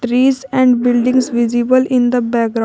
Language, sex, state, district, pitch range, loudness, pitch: English, female, Jharkhand, Garhwa, 240-255 Hz, -14 LUFS, 245 Hz